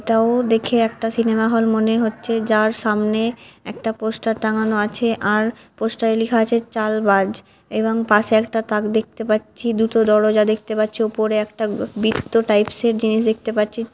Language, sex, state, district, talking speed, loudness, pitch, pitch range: Bengali, female, West Bengal, Dakshin Dinajpur, 175 wpm, -19 LUFS, 220 Hz, 215-225 Hz